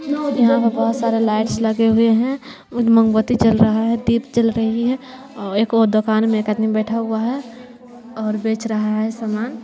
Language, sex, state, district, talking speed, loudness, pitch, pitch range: Hindi, female, Bihar, West Champaran, 185 wpm, -18 LUFS, 225 Hz, 220-240 Hz